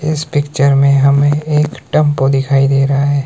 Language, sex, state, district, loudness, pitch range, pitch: Hindi, male, Himachal Pradesh, Shimla, -12 LUFS, 140-150 Hz, 140 Hz